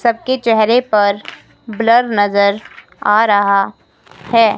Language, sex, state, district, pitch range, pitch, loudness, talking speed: Hindi, female, Himachal Pradesh, Shimla, 205-235 Hz, 220 Hz, -14 LUFS, 105 wpm